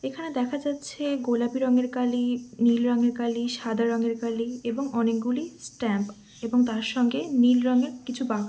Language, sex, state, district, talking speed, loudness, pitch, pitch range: Bengali, female, West Bengal, Dakshin Dinajpur, 155 wpm, -26 LUFS, 245 Hz, 230-255 Hz